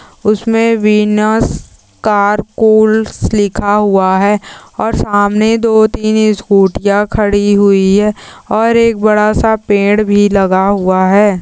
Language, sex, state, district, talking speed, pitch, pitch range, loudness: Hindi, female, Andhra Pradesh, Krishna, 125 wpm, 210 Hz, 200-215 Hz, -11 LUFS